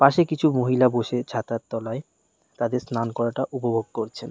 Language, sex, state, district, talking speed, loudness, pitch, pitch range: Bengali, male, West Bengal, North 24 Parganas, 155 wpm, -24 LUFS, 120 Hz, 115-130 Hz